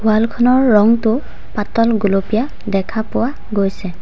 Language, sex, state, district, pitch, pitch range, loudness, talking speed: Assamese, female, Assam, Sonitpur, 220 Hz, 200-230 Hz, -16 LUFS, 120 wpm